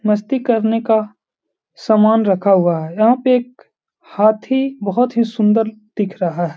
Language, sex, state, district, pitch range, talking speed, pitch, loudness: Hindi, male, Bihar, Gaya, 205-235 Hz, 155 wpm, 220 Hz, -16 LUFS